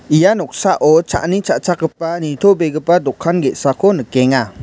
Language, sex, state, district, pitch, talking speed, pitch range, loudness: Garo, male, Meghalaya, West Garo Hills, 165 Hz, 105 wpm, 135-175 Hz, -15 LUFS